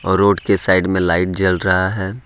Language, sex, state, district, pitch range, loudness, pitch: Hindi, male, Jharkhand, Ranchi, 90-95 Hz, -16 LUFS, 95 Hz